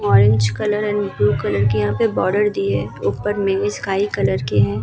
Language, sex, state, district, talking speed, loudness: Hindi, female, Bihar, Vaishali, 235 wpm, -18 LUFS